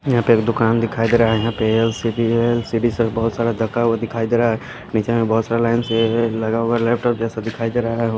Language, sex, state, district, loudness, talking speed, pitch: Hindi, male, Himachal Pradesh, Shimla, -18 LUFS, 255 wpm, 115 Hz